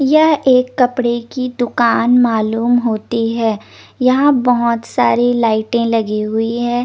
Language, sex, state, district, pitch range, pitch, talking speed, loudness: Hindi, female, Chandigarh, Chandigarh, 230-250 Hz, 240 Hz, 130 wpm, -15 LUFS